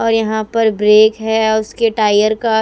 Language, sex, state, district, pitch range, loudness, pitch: Hindi, female, Chhattisgarh, Raipur, 215-225 Hz, -13 LUFS, 220 Hz